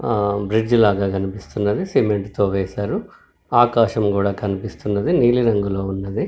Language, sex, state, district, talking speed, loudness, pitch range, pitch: Telugu, male, Telangana, Karimnagar, 125 wpm, -19 LUFS, 100-110 Hz, 105 Hz